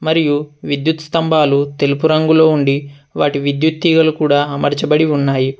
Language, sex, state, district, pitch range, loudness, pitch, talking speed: Telugu, male, Telangana, Adilabad, 140-160 Hz, -14 LUFS, 150 Hz, 130 wpm